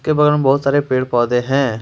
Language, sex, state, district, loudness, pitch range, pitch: Hindi, male, Jharkhand, Ranchi, -16 LUFS, 125-145 Hz, 135 Hz